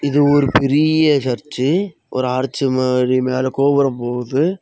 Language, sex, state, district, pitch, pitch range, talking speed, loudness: Tamil, male, Tamil Nadu, Kanyakumari, 135 Hz, 130-145 Hz, 130 wpm, -17 LUFS